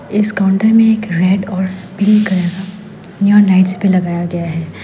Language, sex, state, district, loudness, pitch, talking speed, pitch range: Hindi, female, Meghalaya, West Garo Hills, -13 LUFS, 190 Hz, 185 wpm, 185-200 Hz